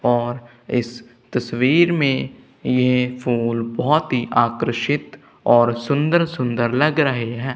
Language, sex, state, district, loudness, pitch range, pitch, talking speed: Hindi, male, Punjab, Kapurthala, -19 LUFS, 120-135 Hz, 125 Hz, 120 wpm